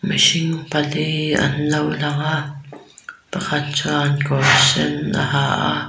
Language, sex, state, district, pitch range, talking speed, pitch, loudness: Mizo, female, Mizoram, Aizawl, 145-155 Hz, 110 wpm, 150 Hz, -18 LUFS